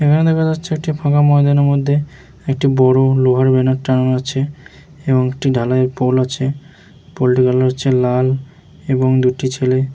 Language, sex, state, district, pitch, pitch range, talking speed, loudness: Bengali, male, West Bengal, Jhargram, 135 Hz, 130-145 Hz, 170 wpm, -15 LUFS